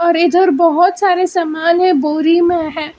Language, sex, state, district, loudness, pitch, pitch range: Hindi, female, Karnataka, Bangalore, -13 LUFS, 340 Hz, 325-360 Hz